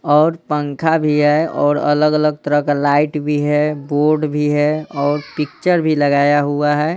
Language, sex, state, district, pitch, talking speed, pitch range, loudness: Hindi, male, Bihar, Patna, 150 Hz, 165 wpm, 145-155 Hz, -16 LUFS